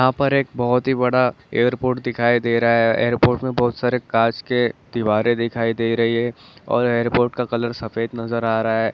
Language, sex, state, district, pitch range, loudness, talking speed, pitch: Hindi, male, Chhattisgarh, Bilaspur, 115-125 Hz, -20 LUFS, 215 wpm, 120 Hz